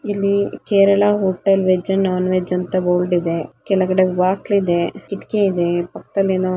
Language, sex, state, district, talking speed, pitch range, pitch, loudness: Kannada, female, Karnataka, Belgaum, 145 wpm, 180-200 Hz, 185 Hz, -18 LUFS